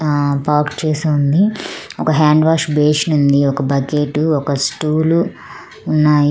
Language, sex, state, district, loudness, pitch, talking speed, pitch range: Telugu, female, Andhra Pradesh, Manyam, -15 LUFS, 150 Hz, 135 wpm, 145-155 Hz